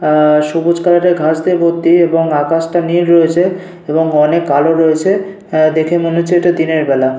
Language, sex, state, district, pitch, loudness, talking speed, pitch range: Bengali, male, West Bengal, Paschim Medinipur, 165 Hz, -12 LUFS, 175 wpm, 155-175 Hz